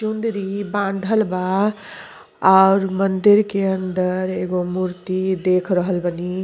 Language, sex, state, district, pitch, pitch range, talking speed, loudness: Bhojpuri, female, Uttar Pradesh, Gorakhpur, 190 Hz, 185-200 Hz, 110 wpm, -19 LUFS